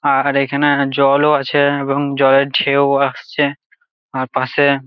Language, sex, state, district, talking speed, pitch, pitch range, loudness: Bengali, male, West Bengal, Jalpaiguri, 135 wpm, 140 Hz, 135-145 Hz, -15 LUFS